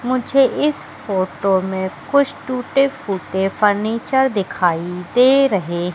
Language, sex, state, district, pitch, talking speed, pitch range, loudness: Hindi, female, Madhya Pradesh, Katni, 210 Hz, 110 wpm, 185-265 Hz, -18 LUFS